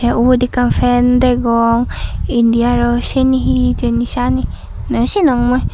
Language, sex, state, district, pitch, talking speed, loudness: Chakma, female, Tripura, Dhalai, 240 Hz, 135 wpm, -14 LUFS